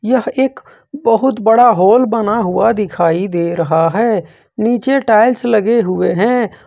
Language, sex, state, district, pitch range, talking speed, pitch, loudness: Hindi, male, Jharkhand, Ranchi, 190-240 Hz, 145 wpm, 225 Hz, -13 LUFS